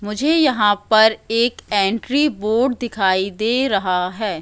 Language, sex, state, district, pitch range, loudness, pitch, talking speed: Hindi, female, Madhya Pradesh, Katni, 200-245 Hz, -18 LUFS, 220 Hz, 135 wpm